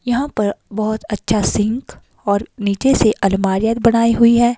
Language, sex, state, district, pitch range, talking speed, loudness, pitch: Hindi, female, Himachal Pradesh, Shimla, 205-235 Hz, 155 wpm, -17 LUFS, 215 Hz